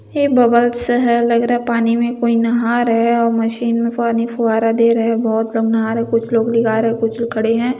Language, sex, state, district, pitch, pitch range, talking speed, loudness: Hindi, female, Chhattisgarh, Bilaspur, 230 Hz, 230-235 Hz, 240 wpm, -16 LUFS